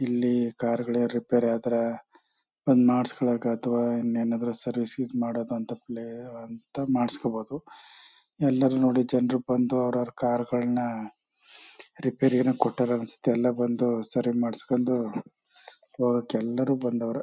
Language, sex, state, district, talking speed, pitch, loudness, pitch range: Kannada, male, Karnataka, Chamarajanagar, 115 wpm, 120 Hz, -26 LUFS, 120-125 Hz